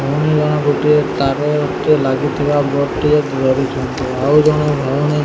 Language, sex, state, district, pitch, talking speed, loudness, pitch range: Odia, male, Odisha, Sambalpur, 145 Hz, 135 wpm, -15 LUFS, 135-150 Hz